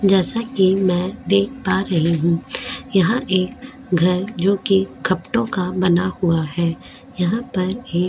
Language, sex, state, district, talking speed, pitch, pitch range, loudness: Hindi, female, Goa, North and South Goa, 150 wpm, 185 Hz, 180-200 Hz, -19 LUFS